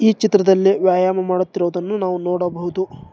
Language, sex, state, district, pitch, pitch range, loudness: Kannada, male, Karnataka, Bangalore, 185 Hz, 180-195 Hz, -18 LUFS